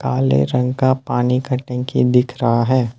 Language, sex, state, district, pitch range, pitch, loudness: Hindi, male, Assam, Kamrup Metropolitan, 120-130 Hz, 125 Hz, -17 LUFS